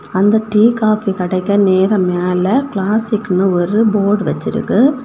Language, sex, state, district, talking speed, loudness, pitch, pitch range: Tamil, female, Tamil Nadu, Kanyakumari, 120 wpm, -14 LUFS, 205 Hz, 185-215 Hz